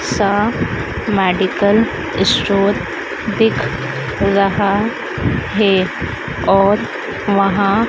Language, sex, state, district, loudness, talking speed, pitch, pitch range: Hindi, female, Madhya Pradesh, Dhar, -16 LUFS, 60 wpm, 200 Hz, 195-210 Hz